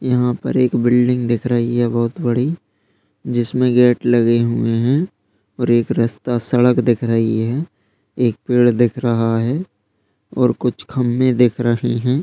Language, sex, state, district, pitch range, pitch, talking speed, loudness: Hindi, male, Bihar, Bhagalpur, 115-125 Hz, 120 Hz, 155 wpm, -17 LUFS